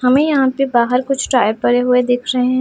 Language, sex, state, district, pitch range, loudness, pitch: Hindi, female, Punjab, Pathankot, 245-265 Hz, -15 LUFS, 250 Hz